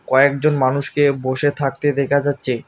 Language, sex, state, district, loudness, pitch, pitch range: Bengali, male, West Bengal, Alipurduar, -17 LUFS, 140 Hz, 135-145 Hz